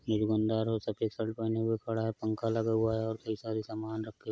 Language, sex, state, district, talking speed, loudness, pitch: Hindi, male, Uttar Pradesh, Varanasi, 250 wpm, -33 LUFS, 110 Hz